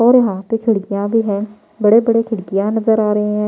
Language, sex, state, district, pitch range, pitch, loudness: Hindi, female, Bihar, Patna, 210-225 Hz, 215 Hz, -16 LUFS